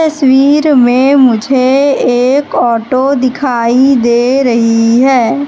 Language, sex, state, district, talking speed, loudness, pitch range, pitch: Hindi, female, Madhya Pradesh, Katni, 100 wpm, -9 LUFS, 240-275 Hz, 260 Hz